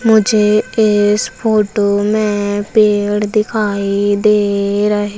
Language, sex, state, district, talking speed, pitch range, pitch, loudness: Hindi, female, Madhya Pradesh, Umaria, 95 wpm, 205-215 Hz, 210 Hz, -14 LUFS